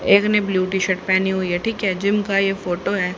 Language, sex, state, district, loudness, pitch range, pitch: Hindi, female, Haryana, Charkhi Dadri, -19 LUFS, 185-200 Hz, 190 Hz